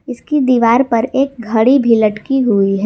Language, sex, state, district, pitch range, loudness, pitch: Hindi, female, Jharkhand, Garhwa, 220-265 Hz, -13 LUFS, 235 Hz